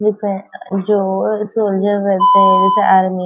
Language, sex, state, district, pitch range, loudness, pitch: Hindi, female, Maharashtra, Nagpur, 195-205 Hz, -14 LUFS, 200 Hz